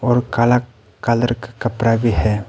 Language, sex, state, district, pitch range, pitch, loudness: Hindi, male, Arunachal Pradesh, Papum Pare, 105-120 Hz, 115 Hz, -18 LUFS